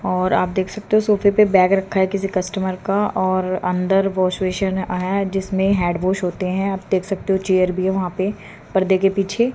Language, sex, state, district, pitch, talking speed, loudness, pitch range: Hindi, female, Haryana, Jhajjar, 190 Hz, 225 wpm, -19 LUFS, 185-195 Hz